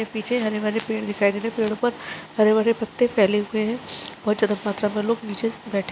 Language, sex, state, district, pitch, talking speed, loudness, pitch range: Hindi, female, Chhattisgarh, Kabirdham, 215 Hz, 220 wpm, -23 LUFS, 210-225 Hz